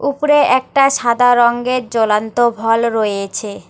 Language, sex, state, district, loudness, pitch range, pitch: Bengali, female, West Bengal, Alipurduar, -14 LUFS, 220-255 Hz, 240 Hz